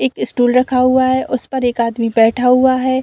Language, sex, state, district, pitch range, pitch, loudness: Hindi, female, Bihar, Saran, 245-260 Hz, 255 Hz, -14 LUFS